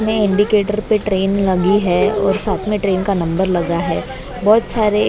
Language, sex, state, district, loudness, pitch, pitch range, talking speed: Hindi, female, Maharashtra, Mumbai Suburban, -16 LUFS, 200 Hz, 185-210 Hz, 190 wpm